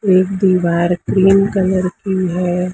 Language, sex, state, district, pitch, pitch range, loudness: Hindi, female, Maharashtra, Mumbai Suburban, 185 Hz, 180-190 Hz, -15 LUFS